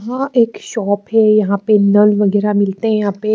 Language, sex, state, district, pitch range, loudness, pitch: Hindi, female, Haryana, Charkhi Dadri, 205-220 Hz, -14 LUFS, 210 Hz